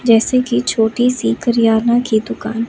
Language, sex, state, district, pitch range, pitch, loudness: Hindi, female, Chandigarh, Chandigarh, 220-240 Hz, 230 Hz, -15 LUFS